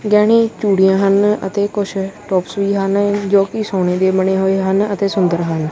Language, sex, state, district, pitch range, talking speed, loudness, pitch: Punjabi, male, Punjab, Kapurthala, 190-205 Hz, 190 wpm, -15 LUFS, 195 Hz